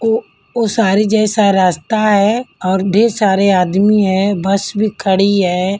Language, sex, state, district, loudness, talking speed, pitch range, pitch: Hindi, female, Delhi, New Delhi, -13 LUFS, 155 wpm, 190-215 Hz, 200 Hz